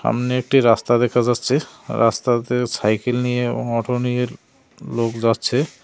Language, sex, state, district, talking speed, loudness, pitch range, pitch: Bengali, male, West Bengal, Cooch Behar, 145 wpm, -19 LUFS, 115-125 Hz, 120 Hz